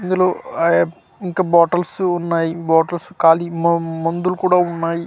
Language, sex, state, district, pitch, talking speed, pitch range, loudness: Telugu, male, Andhra Pradesh, Manyam, 170 Hz, 140 wpm, 165-180 Hz, -17 LUFS